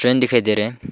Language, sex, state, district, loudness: Hindi, male, Arunachal Pradesh, Longding, -18 LUFS